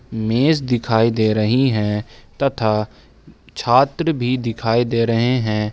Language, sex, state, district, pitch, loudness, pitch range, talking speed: Hindi, male, Jharkhand, Ranchi, 115 Hz, -18 LUFS, 110-125 Hz, 125 wpm